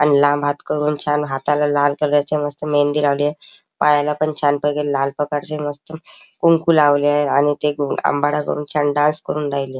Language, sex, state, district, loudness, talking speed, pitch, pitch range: Marathi, male, Maharashtra, Chandrapur, -18 LUFS, 185 wpm, 145 Hz, 145-150 Hz